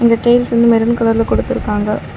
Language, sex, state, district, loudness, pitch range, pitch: Tamil, female, Tamil Nadu, Chennai, -14 LUFS, 225-235 Hz, 230 Hz